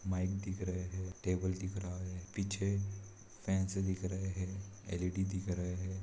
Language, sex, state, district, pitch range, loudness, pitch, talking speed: Hindi, male, Bihar, Araria, 90-95 Hz, -39 LUFS, 95 Hz, 170 wpm